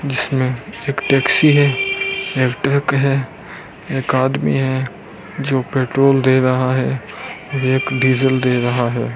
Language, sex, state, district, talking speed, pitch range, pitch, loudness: Hindi, male, Rajasthan, Bikaner, 140 wpm, 130-140 Hz, 130 Hz, -17 LUFS